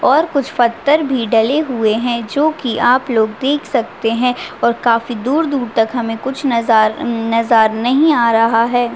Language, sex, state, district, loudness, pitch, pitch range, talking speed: Hindi, female, Chhattisgarh, Raigarh, -15 LUFS, 240 Hz, 230-265 Hz, 175 wpm